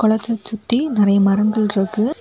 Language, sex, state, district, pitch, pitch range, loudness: Tamil, female, Tamil Nadu, Kanyakumari, 220 Hz, 205-230 Hz, -17 LUFS